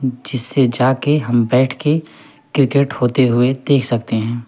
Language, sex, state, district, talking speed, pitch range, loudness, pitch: Hindi, male, Uttar Pradesh, Lalitpur, 160 wpm, 120-140 Hz, -16 LUFS, 130 Hz